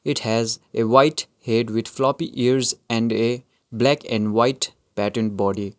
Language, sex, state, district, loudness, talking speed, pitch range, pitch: English, male, Sikkim, Gangtok, -21 LUFS, 155 wpm, 110-130 Hz, 115 Hz